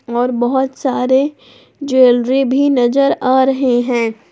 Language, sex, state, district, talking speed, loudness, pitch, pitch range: Hindi, female, Jharkhand, Palamu, 125 wpm, -14 LUFS, 260 Hz, 245-265 Hz